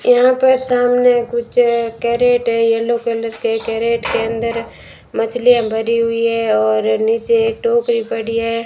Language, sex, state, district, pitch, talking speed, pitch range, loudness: Hindi, female, Rajasthan, Bikaner, 230 Hz, 150 wpm, 230-245 Hz, -16 LUFS